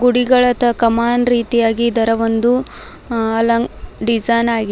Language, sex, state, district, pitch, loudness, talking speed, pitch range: Kannada, female, Karnataka, Bidar, 235 Hz, -15 LUFS, 100 wpm, 225-245 Hz